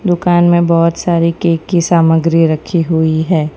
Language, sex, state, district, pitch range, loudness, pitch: Hindi, female, Gujarat, Valsad, 165-175 Hz, -12 LUFS, 170 Hz